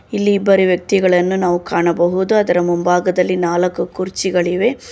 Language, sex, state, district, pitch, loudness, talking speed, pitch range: Kannada, female, Karnataka, Bangalore, 180 Hz, -15 LUFS, 110 wpm, 175-190 Hz